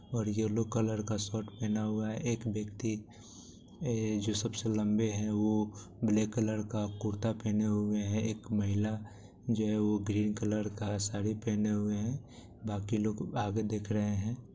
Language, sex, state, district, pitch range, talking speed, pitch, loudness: Maithili, male, Bihar, Supaul, 105-110 Hz, 170 wpm, 105 Hz, -34 LUFS